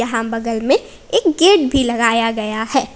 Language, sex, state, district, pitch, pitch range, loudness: Hindi, female, Jharkhand, Palamu, 235 Hz, 230-340 Hz, -16 LUFS